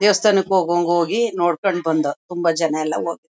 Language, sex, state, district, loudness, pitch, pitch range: Kannada, female, Karnataka, Mysore, -19 LUFS, 175 Hz, 165-195 Hz